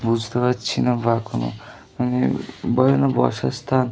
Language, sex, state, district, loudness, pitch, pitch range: Bengali, male, West Bengal, North 24 Parganas, -21 LUFS, 120 Hz, 115-125 Hz